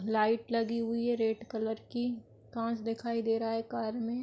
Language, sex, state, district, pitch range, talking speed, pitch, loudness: Hindi, female, Uttar Pradesh, Etah, 225-235 Hz, 200 wpm, 230 Hz, -33 LUFS